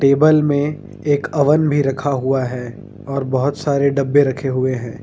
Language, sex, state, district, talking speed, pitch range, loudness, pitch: Hindi, male, Jharkhand, Ranchi, 180 wpm, 130-145 Hz, -17 LUFS, 140 Hz